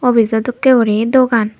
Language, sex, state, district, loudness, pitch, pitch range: Chakma, female, Tripura, Dhalai, -13 LUFS, 230 Hz, 220-250 Hz